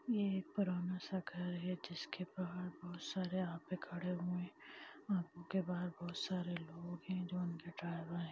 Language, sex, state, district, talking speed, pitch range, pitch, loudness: Hindi, female, Bihar, Gaya, 175 wpm, 175-185 Hz, 180 Hz, -43 LUFS